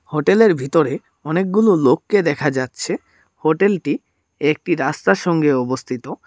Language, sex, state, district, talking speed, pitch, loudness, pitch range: Bengali, male, Tripura, Dhalai, 125 wpm, 155 Hz, -18 LUFS, 140-195 Hz